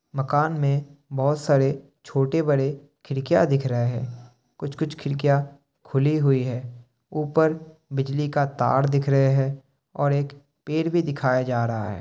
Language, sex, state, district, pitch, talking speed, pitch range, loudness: Hindi, male, Bihar, Kishanganj, 140 Hz, 155 wpm, 135-145 Hz, -23 LUFS